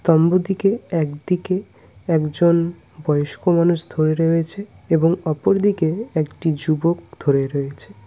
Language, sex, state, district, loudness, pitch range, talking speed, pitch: Bengali, male, West Bengal, Cooch Behar, -20 LUFS, 155-180 Hz, 95 wpm, 165 Hz